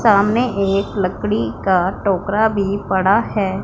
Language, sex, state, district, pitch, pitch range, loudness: Hindi, female, Punjab, Pathankot, 200 Hz, 190-210 Hz, -17 LUFS